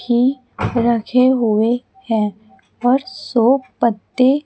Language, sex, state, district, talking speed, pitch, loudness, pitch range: Hindi, female, Chhattisgarh, Raipur, 95 wpm, 240 Hz, -17 LUFS, 225-255 Hz